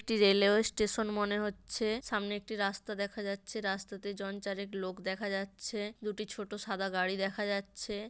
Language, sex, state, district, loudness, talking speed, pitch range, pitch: Bengali, female, West Bengal, Paschim Medinipur, -34 LUFS, 165 wpm, 195-210 Hz, 205 Hz